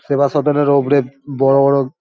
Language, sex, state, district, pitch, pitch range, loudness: Bengali, male, West Bengal, Dakshin Dinajpur, 140 Hz, 135-145 Hz, -14 LUFS